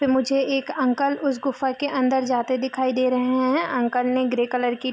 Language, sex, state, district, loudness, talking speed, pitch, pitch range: Hindi, female, Bihar, Gopalganj, -22 LUFS, 220 wpm, 260 Hz, 250-270 Hz